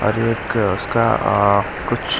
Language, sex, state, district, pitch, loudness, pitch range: Hindi, male, Delhi, New Delhi, 105 Hz, -18 LUFS, 100-115 Hz